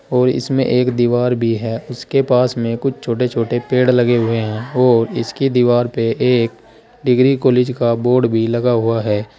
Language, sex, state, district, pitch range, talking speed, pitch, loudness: Hindi, male, Uttar Pradesh, Saharanpur, 115-125 Hz, 185 wpm, 120 Hz, -16 LUFS